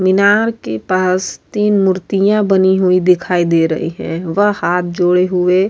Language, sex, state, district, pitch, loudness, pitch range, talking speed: Urdu, female, Uttar Pradesh, Budaun, 185 Hz, -14 LUFS, 180-200 Hz, 170 wpm